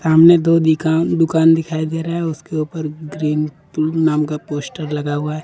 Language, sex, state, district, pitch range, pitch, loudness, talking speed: Hindi, male, Jharkhand, Deoghar, 150-165 Hz, 160 Hz, -17 LUFS, 190 wpm